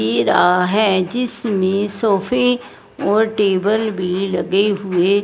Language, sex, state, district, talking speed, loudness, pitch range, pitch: Hindi, female, Punjab, Fazilka, 115 wpm, -17 LUFS, 185-215 Hz, 200 Hz